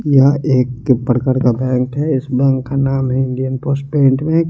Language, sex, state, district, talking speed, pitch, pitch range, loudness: Hindi, male, Chandigarh, Chandigarh, 135 wpm, 130 Hz, 130-140 Hz, -15 LUFS